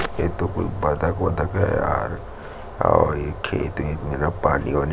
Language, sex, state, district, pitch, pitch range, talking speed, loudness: Hindi, male, Chhattisgarh, Jashpur, 85 Hz, 75-95 Hz, 145 wpm, -23 LUFS